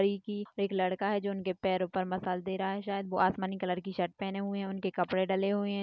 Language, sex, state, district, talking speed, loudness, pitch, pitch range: Hindi, female, Chhattisgarh, Sarguja, 255 wpm, -33 LUFS, 195 Hz, 185-200 Hz